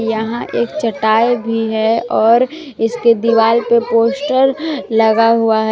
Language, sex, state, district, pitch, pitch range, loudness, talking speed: Hindi, female, Jharkhand, Palamu, 230 Hz, 225-240 Hz, -14 LUFS, 135 wpm